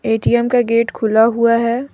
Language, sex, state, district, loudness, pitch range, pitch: Hindi, female, Jharkhand, Deoghar, -15 LUFS, 225-240 Hz, 230 Hz